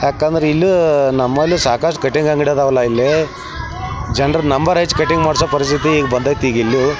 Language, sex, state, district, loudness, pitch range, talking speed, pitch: Kannada, male, Karnataka, Belgaum, -15 LUFS, 130-155 Hz, 145 wpm, 145 Hz